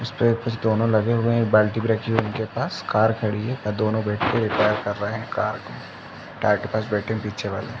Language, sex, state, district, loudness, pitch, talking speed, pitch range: Hindi, male, Uttar Pradesh, Jalaun, -23 LUFS, 110 Hz, 260 wpm, 105-115 Hz